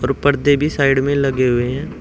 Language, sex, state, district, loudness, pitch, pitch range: Hindi, male, Uttar Pradesh, Shamli, -16 LUFS, 135 Hz, 130-145 Hz